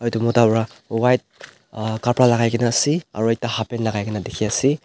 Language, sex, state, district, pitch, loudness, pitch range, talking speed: Nagamese, male, Nagaland, Dimapur, 115 Hz, -20 LUFS, 110-120 Hz, 195 wpm